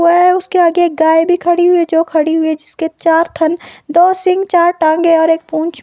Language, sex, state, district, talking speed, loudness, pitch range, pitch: Hindi, female, Himachal Pradesh, Shimla, 245 wpm, -12 LUFS, 320-350 Hz, 335 Hz